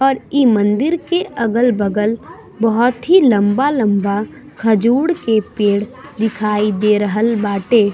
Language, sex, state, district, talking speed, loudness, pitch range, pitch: Bhojpuri, female, Bihar, East Champaran, 115 wpm, -15 LUFS, 210-255 Hz, 225 Hz